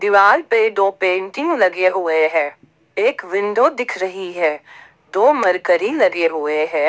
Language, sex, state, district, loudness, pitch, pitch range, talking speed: Hindi, female, Jharkhand, Ranchi, -17 LUFS, 190 Hz, 160-205 Hz, 150 wpm